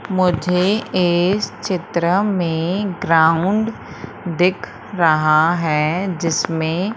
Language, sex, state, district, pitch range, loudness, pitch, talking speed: Hindi, female, Madhya Pradesh, Umaria, 165-190 Hz, -18 LUFS, 175 Hz, 75 wpm